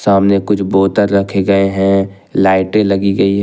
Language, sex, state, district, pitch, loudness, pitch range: Hindi, male, Jharkhand, Ranchi, 100 Hz, -13 LUFS, 95-100 Hz